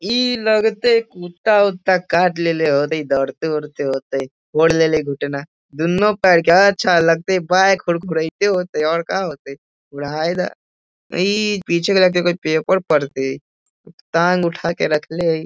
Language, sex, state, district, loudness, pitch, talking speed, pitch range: Hindi, male, Bihar, Jahanabad, -17 LUFS, 170 Hz, 150 wpm, 155-190 Hz